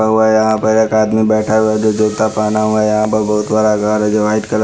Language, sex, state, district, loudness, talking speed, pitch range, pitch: Hindi, male, Haryana, Charkhi Dadri, -13 LUFS, 310 wpm, 105-110 Hz, 110 Hz